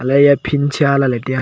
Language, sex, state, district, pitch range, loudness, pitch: Wancho, male, Arunachal Pradesh, Longding, 130-145 Hz, -14 LUFS, 140 Hz